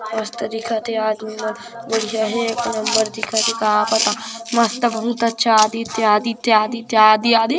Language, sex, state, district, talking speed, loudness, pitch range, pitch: Hindi, female, Chhattisgarh, Kabirdham, 175 wpm, -18 LUFS, 220-230 Hz, 225 Hz